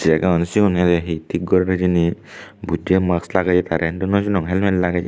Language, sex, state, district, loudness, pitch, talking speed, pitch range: Chakma, male, Tripura, Unakoti, -18 LUFS, 90 Hz, 155 wpm, 85-95 Hz